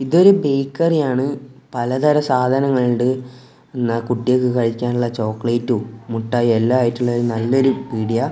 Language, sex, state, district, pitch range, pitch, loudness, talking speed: Malayalam, male, Kerala, Kozhikode, 120-135 Hz, 125 Hz, -18 LUFS, 115 wpm